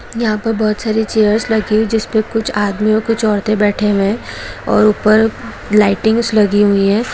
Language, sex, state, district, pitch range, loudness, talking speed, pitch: Hindi, female, Jharkhand, Jamtara, 210-220 Hz, -14 LUFS, 200 wpm, 215 Hz